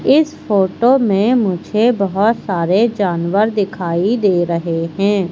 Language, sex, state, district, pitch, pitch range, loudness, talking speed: Hindi, female, Madhya Pradesh, Katni, 200 Hz, 180-225 Hz, -15 LUFS, 125 wpm